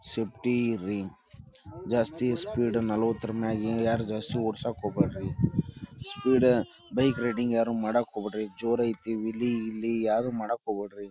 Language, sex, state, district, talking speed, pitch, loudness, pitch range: Kannada, male, Karnataka, Dharwad, 125 wpm, 115 Hz, -29 LUFS, 110-120 Hz